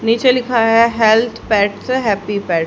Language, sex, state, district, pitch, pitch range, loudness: Hindi, female, Haryana, Charkhi Dadri, 225 Hz, 205-235 Hz, -14 LUFS